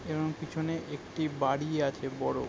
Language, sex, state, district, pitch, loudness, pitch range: Bengali, male, West Bengal, Kolkata, 155 Hz, -33 LUFS, 140-160 Hz